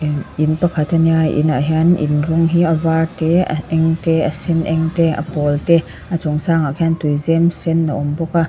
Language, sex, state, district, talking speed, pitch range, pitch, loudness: Mizo, female, Mizoram, Aizawl, 225 wpm, 150-165 Hz, 160 Hz, -16 LUFS